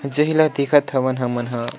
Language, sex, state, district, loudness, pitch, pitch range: Chhattisgarhi, male, Chhattisgarh, Sukma, -18 LUFS, 140 Hz, 125-145 Hz